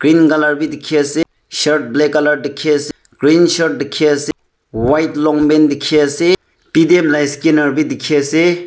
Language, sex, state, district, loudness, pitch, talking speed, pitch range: Nagamese, male, Nagaland, Dimapur, -14 LUFS, 150 Hz, 130 wpm, 145-160 Hz